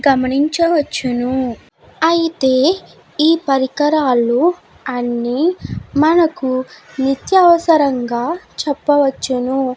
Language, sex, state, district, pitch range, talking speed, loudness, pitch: Telugu, female, Andhra Pradesh, Guntur, 255-325 Hz, 50 wpm, -16 LUFS, 275 Hz